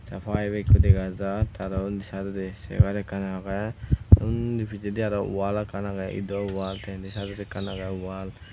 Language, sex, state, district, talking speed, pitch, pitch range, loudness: Chakma, male, Tripura, Unakoti, 190 wpm, 100 Hz, 95-105 Hz, -27 LUFS